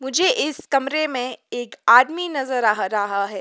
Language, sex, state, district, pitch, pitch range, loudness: Hindi, female, Himachal Pradesh, Shimla, 255 Hz, 220-285 Hz, -20 LUFS